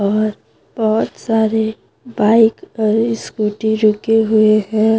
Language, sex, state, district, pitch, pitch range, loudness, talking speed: Hindi, female, Jharkhand, Deoghar, 220 Hz, 215-225 Hz, -16 LUFS, 110 wpm